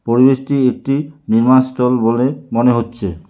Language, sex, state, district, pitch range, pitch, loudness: Bengali, male, West Bengal, Alipurduar, 115-135 Hz, 125 Hz, -15 LUFS